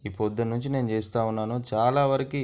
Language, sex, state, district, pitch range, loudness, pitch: Telugu, male, Andhra Pradesh, Anantapur, 110-135 Hz, -26 LUFS, 115 Hz